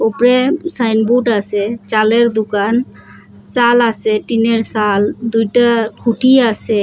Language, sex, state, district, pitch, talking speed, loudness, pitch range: Bengali, female, Assam, Hailakandi, 225 Hz, 105 wpm, -14 LUFS, 215-240 Hz